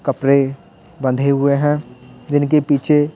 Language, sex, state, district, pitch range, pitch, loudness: Hindi, male, Bihar, Patna, 135-145 Hz, 140 Hz, -17 LUFS